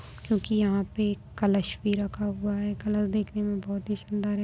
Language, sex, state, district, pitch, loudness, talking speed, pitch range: Hindi, female, Bihar, Sitamarhi, 205 Hz, -28 LUFS, 215 wpm, 200-210 Hz